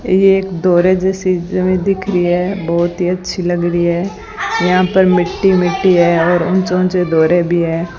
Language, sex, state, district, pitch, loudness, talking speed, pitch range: Hindi, female, Rajasthan, Bikaner, 180 Hz, -14 LUFS, 180 wpm, 175-185 Hz